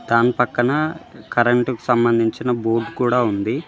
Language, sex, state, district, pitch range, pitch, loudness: Telugu, male, Telangana, Mahabubabad, 115-125 Hz, 120 Hz, -19 LUFS